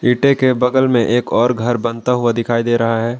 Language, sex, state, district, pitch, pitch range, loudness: Hindi, male, Jharkhand, Palamu, 120 Hz, 115-125 Hz, -15 LUFS